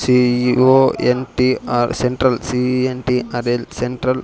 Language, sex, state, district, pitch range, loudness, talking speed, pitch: Telugu, male, Andhra Pradesh, Sri Satya Sai, 125-130 Hz, -17 LUFS, 210 wpm, 125 Hz